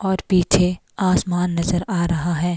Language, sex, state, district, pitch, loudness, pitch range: Hindi, female, Himachal Pradesh, Shimla, 180 Hz, -20 LUFS, 175-185 Hz